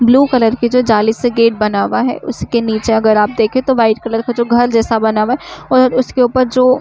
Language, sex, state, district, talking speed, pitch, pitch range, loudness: Hindi, female, Uttar Pradesh, Budaun, 255 wpm, 235 Hz, 220-255 Hz, -13 LUFS